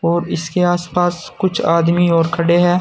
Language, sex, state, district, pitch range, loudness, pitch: Hindi, male, Uttar Pradesh, Saharanpur, 170-175 Hz, -16 LUFS, 175 Hz